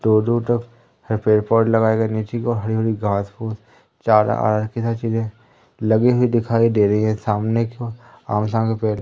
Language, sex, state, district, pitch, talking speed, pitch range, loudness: Hindi, male, Madhya Pradesh, Umaria, 110 Hz, 180 wpm, 110-115 Hz, -19 LUFS